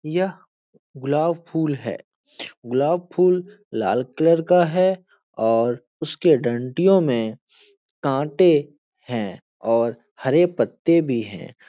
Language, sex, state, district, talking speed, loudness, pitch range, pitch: Hindi, male, Uttar Pradesh, Etah, 110 wpm, -21 LUFS, 125-180 Hz, 160 Hz